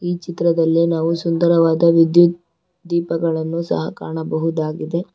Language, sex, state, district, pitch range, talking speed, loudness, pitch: Kannada, female, Karnataka, Bangalore, 165-170 Hz, 95 wpm, -18 LUFS, 170 Hz